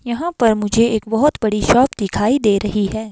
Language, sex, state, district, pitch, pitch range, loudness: Hindi, female, Himachal Pradesh, Shimla, 220 Hz, 210-245 Hz, -16 LUFS